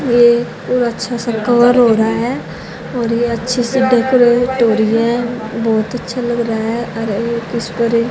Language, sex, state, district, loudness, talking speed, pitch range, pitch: Hindi, female, Haryana, Jhajjar, -15 LUFS, 170 wpm, 230-245 Hz, 235 Hz